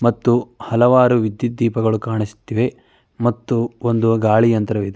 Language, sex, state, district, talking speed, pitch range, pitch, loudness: Kannada, male, Karnataka, Mysore, 120 wpm, 110-120 Hz, 115 Hz, -18 LUFS